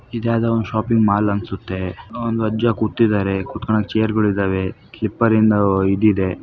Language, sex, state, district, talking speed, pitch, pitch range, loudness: Kannada, female, Karnataka, Chamarajanagar, 120 wpm, 110 Hz, 100-115 Hz, -19 LUFS